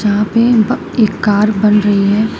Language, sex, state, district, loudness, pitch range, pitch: Hindi, female, Uttar Pradesh, Shamli, -12 LUFS, 205-220 Hz, 210 Hz